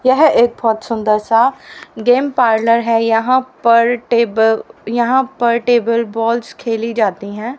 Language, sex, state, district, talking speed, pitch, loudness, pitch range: Hindi, female, Haryana, Rohtak, 140 wpm, 235 Hz, -15 LUFS, 225-240 Hz